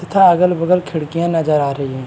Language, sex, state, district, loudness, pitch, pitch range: Hindi, male, Maharashtra, Chandrapur, -15 LUFS, 165 Hz, 150-180 Hz